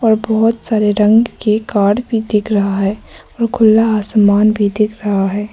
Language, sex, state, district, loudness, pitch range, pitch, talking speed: Hindi, female, Arunachal Pradesh, Papum Pare, -13 LUFS, 205-225 Hz, 215 Hz, 185 wpm